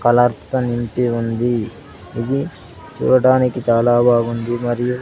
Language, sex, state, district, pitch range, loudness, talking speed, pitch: Telugu, male, Andhra Pradesh, Sri Satya Sai, 115-125 Hz, -17 LUFS, 95 wpm, 120 Hz